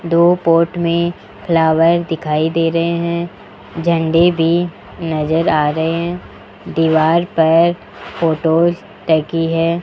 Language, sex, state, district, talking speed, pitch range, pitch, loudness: Hindi, male, Rajasthan, Jaipur, 115 wpm, 160-170 Hz, 165 Hz, -15 LUFS